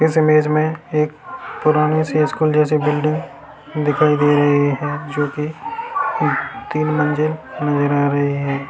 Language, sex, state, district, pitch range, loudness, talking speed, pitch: Hindi, male, Bihar, Darbhanga, 145-155 Hz, -18 LUFS, 145 wpm, 150 Hz